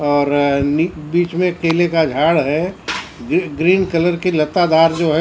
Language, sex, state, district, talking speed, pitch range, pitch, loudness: Hindi, male, Maharashtra, Mumbai Suburban, 185 wpm, 150-175 Hz, 165 Hz, -16 LUFS